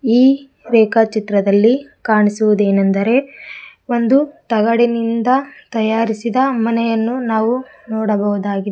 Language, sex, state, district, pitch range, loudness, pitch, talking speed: Kannada, female, Karnataka, Koppal, 215-255 Hz, -16 LUFS, 230 Hz, 60 wpm